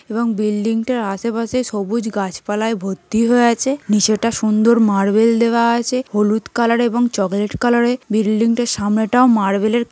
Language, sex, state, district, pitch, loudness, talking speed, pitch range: Bengali, female, West Bengal, North 24 Parganas, 225 Hz, -17 LUFS, 155 wpm, 210-235 Hz